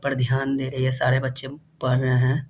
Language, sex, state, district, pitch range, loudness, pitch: Hindi, male, Bihar, Jahanabad, 130-135 Hz, -23 LUFS, 130 Hz